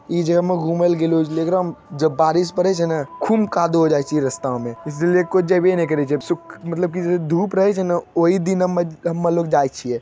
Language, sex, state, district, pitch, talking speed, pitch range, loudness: Magahi, male, Bihar, Jamui, 170 Hz, 170 wpm, 160-180 Hz, -19 LUFS